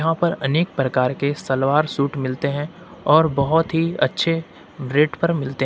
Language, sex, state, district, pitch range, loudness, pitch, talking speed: Hindi, male, Jharkhand, Ranchi, 135-165 Hz, -20 LUFS, 150 Hz, 170 wpm